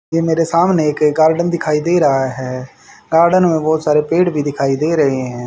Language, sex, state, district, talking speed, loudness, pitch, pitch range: Hindi, male, Haryana, Rohtak, 210 wpm, -15 LUFS, 155 Hz, 140-165 Hz